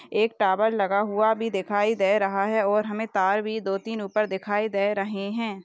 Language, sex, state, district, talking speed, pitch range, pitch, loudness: Hindi, female, Rajasthan, Nagaur, 215 wpm, 195-215 Hz, 205 Hz, -24 LUFS